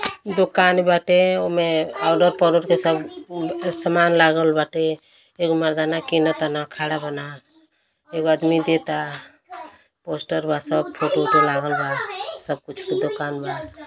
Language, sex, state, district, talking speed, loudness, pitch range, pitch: Bhojpuri, male, Uttar Pradesh, Deoria, 140 wpm, -20 LUFS, 160-185 Hz, 170 Hz